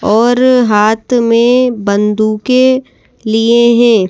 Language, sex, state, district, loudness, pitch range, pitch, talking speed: Hindi, female, Madhya Pradesh, Bhopal, -10 LUFS, 215-250 Hz, 235 Hz, 90 wpm